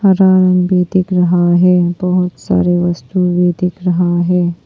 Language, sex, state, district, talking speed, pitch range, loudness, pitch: Hindi, female, Arunachal Pradesh, Papum Pare, 155 wpm, 175-180 Hz, -13 LUFS, 180 Hz